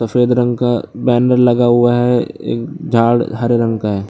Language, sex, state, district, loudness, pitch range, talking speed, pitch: Hindi, male, Bihar, Lakhisarai, -14 LUFS, 115-125 Hz, 190 wpm, 120 Hz